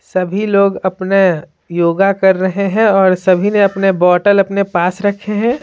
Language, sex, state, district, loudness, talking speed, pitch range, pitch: Hindi, female, Bihar, Patna, -13 LUFS, 170 wpm, 185-200 Hz, 195 Hz